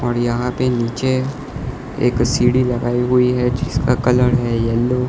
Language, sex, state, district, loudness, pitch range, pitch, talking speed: Hindi, male, Gujarat, Valsad, -18 LUFS, 120-130 Hz, 125 Hz, 165 wpm